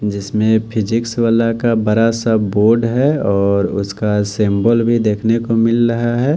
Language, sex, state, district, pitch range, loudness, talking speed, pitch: Hindi, male, Delhi, New Delhi, 105-115 Hz, -15 LUFS, 160 wpm, 115 Hz